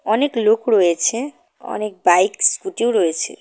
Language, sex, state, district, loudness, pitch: Bengali, female, West Bengal, Cooch Behar, -17 LUFS, 225 Hz